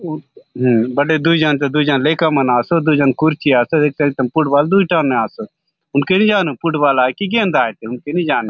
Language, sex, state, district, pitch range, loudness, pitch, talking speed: Halbi, male, Chhattisgarh, Bastar, 140-165 Hz, -15 LUFS, 155 Hz, 235 wpm